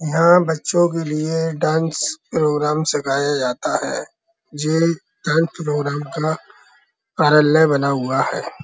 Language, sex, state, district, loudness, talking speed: Hindi, male, Uttar Pradesh, Muzaffarnagar, -19 LUFS, 120 wpm